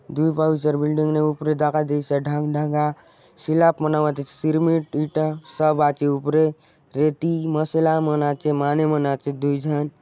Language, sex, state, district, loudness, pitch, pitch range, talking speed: Halbi, male, Chhattisgarh, Bastar, -21 LUFS, 150 Hz, 145-155 Hz, 155 wpm